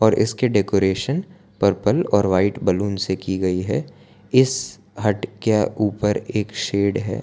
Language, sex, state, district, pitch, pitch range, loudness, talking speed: Hindi, male, Gujarat, Valsad, 105 Hz, 100-115 Hz, -21 LUFS, 150 wpm